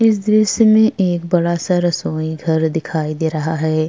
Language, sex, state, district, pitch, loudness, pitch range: Hindi, female, Bihar, Vaishali, 170 Hz, -16 LUFS, 160-200 Hz